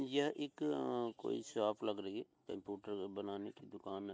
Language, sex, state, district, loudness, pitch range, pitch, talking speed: Hindi, male, Uttar Pradesh, Hamirpur, -42 LUFS, 100-135 Hz, 105 Hz, 205 wpm